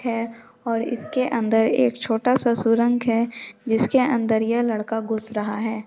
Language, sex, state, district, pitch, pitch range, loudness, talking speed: Hindi, female, Chhattisgarh, Sukma, 230 Hz, 225-240 Hz, -22 LUFS, 175 wpm